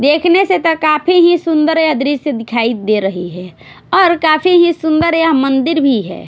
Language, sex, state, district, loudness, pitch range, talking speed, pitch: Hindi, female, Punjab, Pathankot, -12 LUFS, 265-335 Hz, 190 wpm, 310 Hz